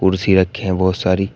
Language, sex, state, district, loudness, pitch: Hindi, male, Uttar Pradesh, Shamli, -17 LUFS, 95 Hz